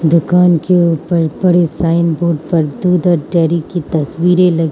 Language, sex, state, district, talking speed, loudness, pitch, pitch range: Hindi, female, Mizoram, Aizawl, 165 wpm, -13 LUFS, 170 Hz, 165-175 Hz